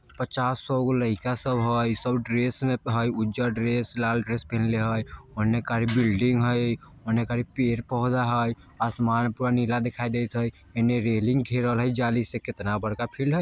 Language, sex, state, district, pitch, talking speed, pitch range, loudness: Bajjika, male, Bihar, Vaishali, 120 Hz, 185 wpm, 115-125 Hz, -26 LUFS